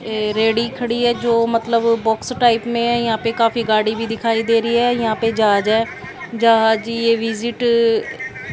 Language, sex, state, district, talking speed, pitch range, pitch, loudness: Hindi, female, Haryana, Jhajjar, 175 wpm, 225-235 Hz, 230 Hz, -17 LUFS